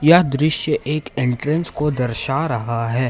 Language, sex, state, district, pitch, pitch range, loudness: Hindi, male, Jharkhand, Ranchi, 145 Hz, 125-155 Hz, -19 LUFS